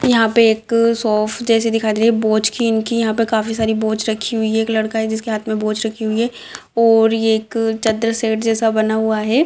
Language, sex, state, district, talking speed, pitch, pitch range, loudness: Hindi, female, Bihar, Madhepura, 255 wpm, 225 Hz, 220-230 Hz, -17 LUFS